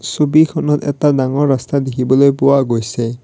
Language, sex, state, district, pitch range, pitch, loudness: Assamese, male, Assam, Kamrup Metropolitan, 130-145 Hz, 140 Hz, -14 LUFS